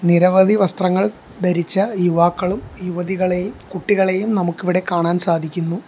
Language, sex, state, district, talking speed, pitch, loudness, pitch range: Malayalam, male, Kerala, Kollam, 100 wpm, 180 Hz, -18 LUFS, 175-190 Hz